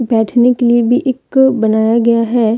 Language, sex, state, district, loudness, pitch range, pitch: Hindi, female, Jharkhand, Deoghar, -12 LUFS, 230-250 Hz, 235 Hz